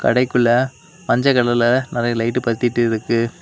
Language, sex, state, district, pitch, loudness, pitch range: Tamil, male, Tamil Nadu, Kanyakumari, 120 Hz, -18 LUFS, 120-125 Hz